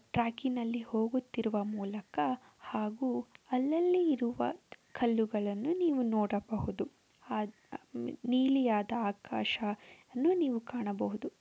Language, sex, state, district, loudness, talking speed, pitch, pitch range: Kannada, female, Karnataka, Dharwad, -34 LUFS, 80 wpm, 230 Hz, 210-255 Hz